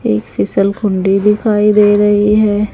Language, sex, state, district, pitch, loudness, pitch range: Hindi, female, Haryana, Charkhi Dadri, 205 Hz, -12 LUFS, 195-210 Hz